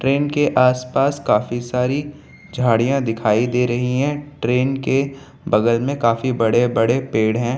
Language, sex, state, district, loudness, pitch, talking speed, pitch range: Hindi, male, Bihar, Samastipur, -19 LUFS, 125 Hz, 140 wpm, 120-135 Hz